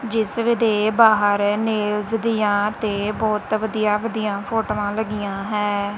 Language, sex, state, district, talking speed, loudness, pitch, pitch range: Punjabi, female, Punjab, Kapurthala, 120 wpm, -20 LUFS, 210 Hz, 205-220 Hz